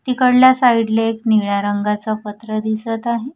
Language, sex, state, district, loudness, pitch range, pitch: Marathi, female, Maharashtra, Washim, -16 LUFS, 215-240 Hz, 225 Hz